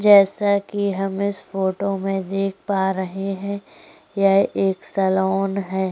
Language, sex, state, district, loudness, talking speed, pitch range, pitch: Hindi, female, Chhattisgarh, Korba, -21 LUFS, 140 wpm, 190-200 Hz, 195 Hz